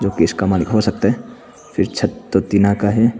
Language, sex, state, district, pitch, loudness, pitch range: Hindi, male, Arunachal Pradesh, Papum Pare, 100 Hz, -17 LUFS, 95-110 Hz